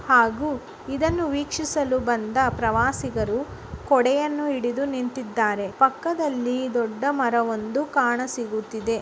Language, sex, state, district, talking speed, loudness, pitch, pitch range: Kannada, female, Karnataka, Chamarajanagar, 80 wpm, -24 LUFS, 255 Hz, 235-285 Hz